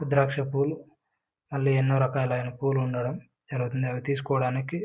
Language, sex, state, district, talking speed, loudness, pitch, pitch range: Telugu, male, Andhra Pradesh, Anantapur, 125 wpm, -27 LUFS, 135 Hz, 125-140 Hz